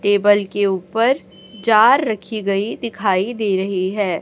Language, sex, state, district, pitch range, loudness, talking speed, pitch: Hindi, female, Chhattisgarh, Raipur, 195-215 Hz, -18 LUFS, 140 wpm, 205 Hz